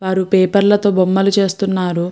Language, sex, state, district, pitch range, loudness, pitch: Telugu, female, Andhra Pradesh, Guntur, 185-200 Hz, -14 LUFS, 190 Hz